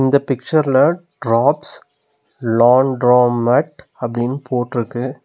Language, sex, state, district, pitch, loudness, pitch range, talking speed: Tamil, male, Tamil Nadu, Nilgiris, 125 Hz, -16 LUFS, 120-140 Hz, 70 wpm